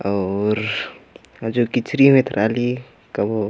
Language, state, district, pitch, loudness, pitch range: Kurukh, Chhattisgarh, Jashpur, 110 Hz, -19 LUFS, 105-125 Hz